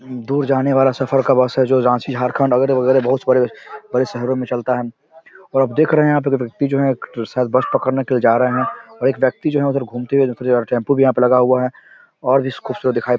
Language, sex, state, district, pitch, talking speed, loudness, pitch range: Hindi, male, Bihar, Samastipur, 130 Hz, 225 wpm, -17 LUFS, 125-135 Hz